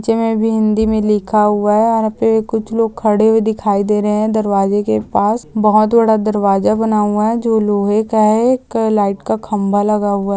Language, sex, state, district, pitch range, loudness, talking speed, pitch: Hindi, female, Maharashtra, Nagpur, 210-225 Hz, -14 LUFS, 205 wpm, 215 Hz